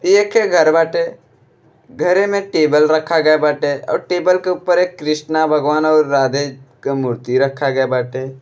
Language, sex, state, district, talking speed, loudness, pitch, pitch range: Bhojpuri, male, Uttar Pradesh, Deoria, 165 wpm, -16 LUFS, 155 Hz, 135-180 Hz